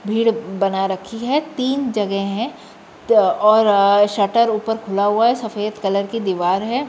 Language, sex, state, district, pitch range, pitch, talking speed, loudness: Hindi, female, Uttar Pradesh, Jyotiba Phule Nagar, 200-230 Hz, 215 Hz, 155 wpm, -18 LUFS